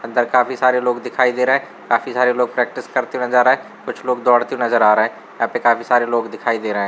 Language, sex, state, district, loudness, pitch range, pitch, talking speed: Hindi, male, Uttar Pradesh, Varanasi, -17 LUFS, 120-125 Hz, 125 Hz, 270 wpm